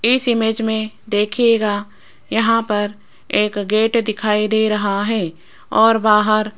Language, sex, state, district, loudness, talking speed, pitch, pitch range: Hindi, female, Rajasthan, Jaipur, -17 LUFS, 135 wpm, 215 Hz, 210-225 Hz